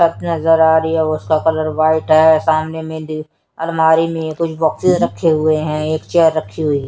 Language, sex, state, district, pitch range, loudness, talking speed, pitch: Hindi, female, Haryana, Charkhi Dadri, 155-165 Hz, -15 LUFS, 190 wpm, 160 Hz